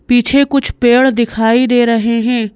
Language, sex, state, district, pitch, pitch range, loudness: Hindi, female, Madhya Pradesh, Bhopal, 240 Hz, 230-250 Hz, -12 LUFS